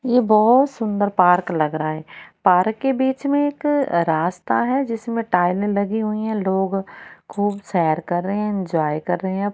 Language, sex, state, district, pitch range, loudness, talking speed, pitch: Hindi, female, Haryana, Rohtak, 180-230 Hz, -20 LUFS, 180 wpm, 205 Hz